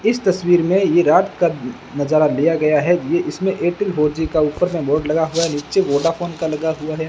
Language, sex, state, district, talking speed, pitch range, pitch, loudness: Hindi, male, Rajasthan, Bikaner, 230 wpm, 150-180 Hz, 165 Hz, -17 LUFS